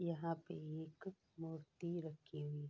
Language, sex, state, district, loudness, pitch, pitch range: Hindi, female, Bihar, Saharsa, -48 LUFS, 160 Hz, 155-170 Hz